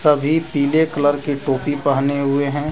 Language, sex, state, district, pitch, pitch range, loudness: Hindi, male, Jharkhand, Deoghar, 145 Hz, 140-150 Hz, -18 LUFS